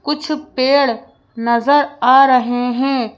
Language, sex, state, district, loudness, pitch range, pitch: Hindi, female, Madhya Pradesh, Bhopal, -15 LUFS, 245-285 Hz, 260 Hz